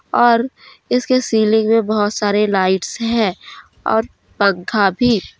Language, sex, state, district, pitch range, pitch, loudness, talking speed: Hindi, female, Jharkhand, Deoghar, 205-235 Hz, 220 Hz, -16 LUFS, 120 wpm